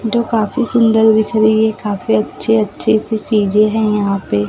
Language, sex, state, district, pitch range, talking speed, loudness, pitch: Hindi, female, Maharashtra, Gondia, 205-220 Hz, 200 wpm, -14 LUFS, 220 Hz